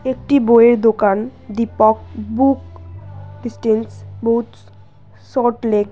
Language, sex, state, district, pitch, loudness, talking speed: Bengali, female, West Bengal, North 24 Parganas, 200 Hz, -16 LUFS, 100 wpm